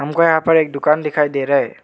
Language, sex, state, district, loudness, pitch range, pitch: Hindi, male, Arunachal Pradesh, Lower Dibang Valley, -16 LUFS, 140-160 Hz, 150 Hz